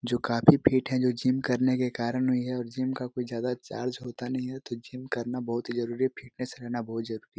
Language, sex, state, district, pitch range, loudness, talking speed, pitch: Hindi, male, Chhattisgarh, Korba, 120-130 Hz, -29 LUFS, 250 wpm, 125 Hz